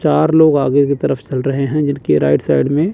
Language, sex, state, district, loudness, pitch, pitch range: Hindi, male, Chandigarh, Chandigarh, -14 LUFS, 140 Hz, 130-150 Hz